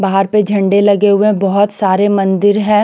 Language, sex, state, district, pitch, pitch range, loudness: Hindi, female, Chandigarh, Chandigarh, 205 Hz, 195-205 Hz, -12 LUFS